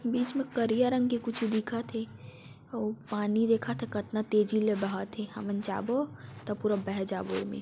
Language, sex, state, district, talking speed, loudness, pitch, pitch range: Chhattisgarhi, female, Chhattisgarh, Raigarh, 190 wpm, -31 LUFS, 215 Hz, 205-235 Hz